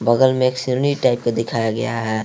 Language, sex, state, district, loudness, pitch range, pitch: Hindi, male, Jharkhand, Garhwa, -19 LUFS, 115-130 Hz, 120 Hz